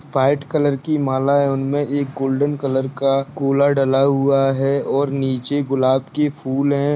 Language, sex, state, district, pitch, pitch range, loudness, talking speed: Hindi, male, Bihar, Jahanabad, 140 Hz, 135-145 Hz, -19 LUFS, 165 wpm